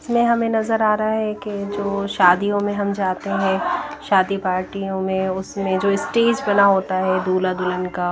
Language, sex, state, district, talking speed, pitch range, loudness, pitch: Hindi, female, Odisha, Nuapada, 185 wpm, 185-210 Hz, -20 LUFS, 200 Hz